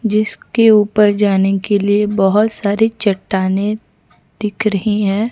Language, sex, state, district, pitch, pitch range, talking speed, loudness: Hindi, female, Chhattisgarh, Bastar, 210 Hz, 200-215 Hz, 125 wpm, -15 LUFS